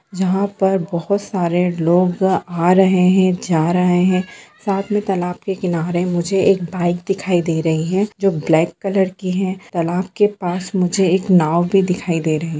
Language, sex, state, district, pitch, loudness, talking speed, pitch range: Hindi, female, Bihar, Sitamarhi, 185 Hz, -17 LUFS, 185 wpm, 175-195 Hz